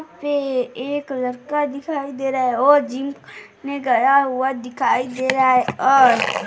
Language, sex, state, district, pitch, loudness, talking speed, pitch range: Hindi, female, Bihar, Bhagalpur, 270 Hz, -19 LUFS, 165 wpm, 255-285 Hz